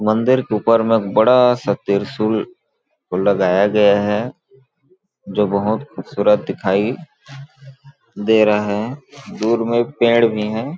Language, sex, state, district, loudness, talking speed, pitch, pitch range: Hindi, male, Chhattisgarh, Balrampur, -17 LUFS, 120 wpm, 115 Hz, 105-130 Hz